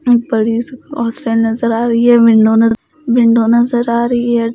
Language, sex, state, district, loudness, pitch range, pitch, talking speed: Hindi, female, Bihar, West Champaran, -12 LUFS, 230-240 Hz, 235 Hz, 160 wpm